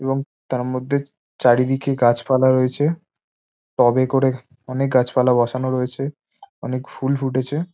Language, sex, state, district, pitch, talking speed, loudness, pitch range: Bengali, male, West Bengal, Jhargram, 130 Hz, 115 wpm, -20 LUFS, 125-135 Hz